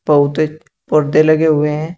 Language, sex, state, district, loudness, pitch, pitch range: Hindi, male, Uttar Pradesh, Shamli, -14 LUFS, 155 Hz, 150-155 Hz